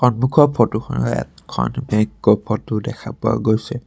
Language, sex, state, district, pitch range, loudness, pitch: Assamese, male, Assam, Sonitpur, 110-125 Hz, -19 LUFS, 110 Hz